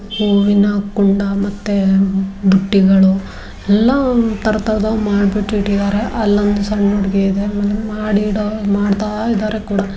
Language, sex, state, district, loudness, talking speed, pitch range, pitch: Kannada, female, Karnataka, Dharwad, -15 LUFS, 110 wpm, 200-215 Hz, 205 Hz